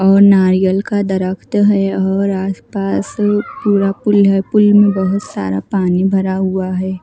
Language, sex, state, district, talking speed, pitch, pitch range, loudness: Hindi, female, Maharashtra, Mumbai Suburban, 155 wpm, 195 Hz, 190-200 Hz, -14 LUFS